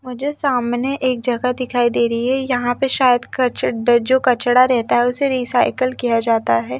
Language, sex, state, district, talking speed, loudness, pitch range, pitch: Hindi, female, Delhi, New Delhi, 185 wpm, -17 LUFS, 240-255 Hz, 250 Hz